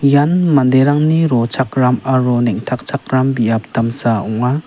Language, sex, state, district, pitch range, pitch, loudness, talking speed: Garo, male, Meghalaya, West Garo Hills, 120-140 Hz, 130 Hz, -15 LUFS, 105 wpm